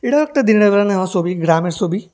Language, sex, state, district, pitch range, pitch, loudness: Bengali, male, Tripura, West Tripura, 180-220 Hz, 190 Hz, -15 LUFS